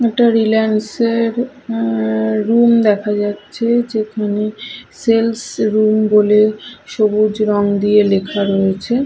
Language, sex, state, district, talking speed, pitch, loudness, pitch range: Bengali, female, Bihar, Katihar, 105 wpm, 215 Hz, -15 LUFS, 205-230 Hz